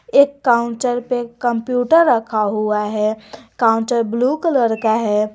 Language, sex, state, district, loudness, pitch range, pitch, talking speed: Hindi, female, Jharkhand, Garhwa, -17 LUFS, 215-250 Hz, 235 Hz, 135 wpm